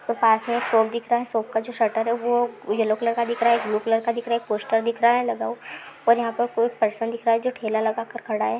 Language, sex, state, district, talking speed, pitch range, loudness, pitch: Hindi, female, Uttarakhand, Tehri Garhwal, 325 wpm, 225-235 Hz, -23 LUFS, 235 Hz